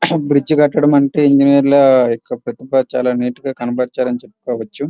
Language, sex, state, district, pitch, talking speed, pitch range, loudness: Telugu, male, Andhra Pradesh, Srikakulam, 135 Hz, 145 wpm, 125-145 Hz, -14 LUFS